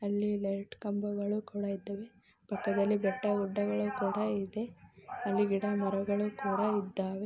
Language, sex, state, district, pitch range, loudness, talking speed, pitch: Kannada, female, Karnataka, Dakshina Kannada, 200-210 Hz, -33 LUFS, 125 wpm, 205 Hz